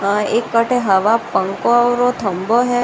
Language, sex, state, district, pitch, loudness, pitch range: Rajasthani, female, Rajasthan, Nagaur, 230 Hz, -16 LUFS, 200-245 Hz